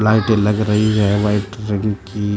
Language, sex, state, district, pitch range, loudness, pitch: Hindi, male, Uttar Pradesh, Shamli, 105-110 Hz, -17 LUFS, 105 Hz